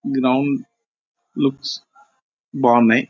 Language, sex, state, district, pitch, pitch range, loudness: Telugu, male, Andhra Pradesh, Anantapur, 135 Hz, 120-140 Hz, -19 LUFS